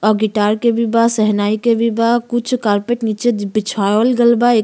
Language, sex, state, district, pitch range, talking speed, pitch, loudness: Bhojpuri, female, Uttar Pradesh, Gorakhpur, 215-235 Hz, 220 wpm, 230 Hz, -15 LUFS